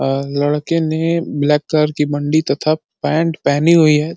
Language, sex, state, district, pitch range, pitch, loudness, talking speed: Hindi, male, Uttar Pradesh, Deoria, 145-160 Hz, 150 Hz, -16 LUFS, 175 wpm